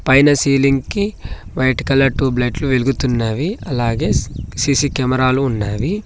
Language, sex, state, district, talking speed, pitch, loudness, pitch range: Telugu, male, Telangana, Mahabubabad, 140 wpm, 130 Hz, -17 LUFS, 125-140 Hz